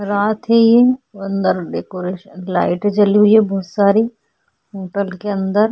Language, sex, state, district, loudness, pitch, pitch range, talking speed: Hindi, female, Goa, North and South Goa, -16 LUFS, 205 Hz, 190-215 Hz, 155 wpm